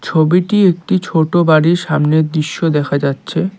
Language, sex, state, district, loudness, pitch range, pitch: Bengali, male, West Bengal, Cooch Behar, -14 LUFS, 155-180 Hz, 160 Hz